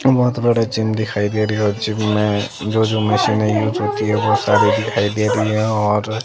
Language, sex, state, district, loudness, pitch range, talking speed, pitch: Hindi, female, Himachal Pradesh, Shimla, -17 LUFS, 105-110 Hz, 210 wpm, 110 Hz